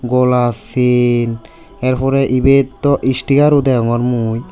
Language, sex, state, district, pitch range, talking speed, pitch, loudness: Chakma, male, Tripura, West Tripura, 120-135 Hz, 135 wpm, 125 Hz, -14 LUFS